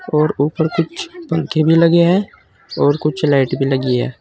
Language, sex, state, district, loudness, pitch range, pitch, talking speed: Hindi, male, Uttar Pradesh, Saharanpur, -16 LUFS, 145-170 Hz, 155 Hz, 185 wpm